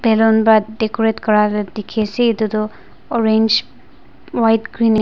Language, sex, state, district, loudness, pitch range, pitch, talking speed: Nagamese, female, Nagaland, Dimapur, -16 LUFS, 215-225 Hz, 220 Hz, 145 wpm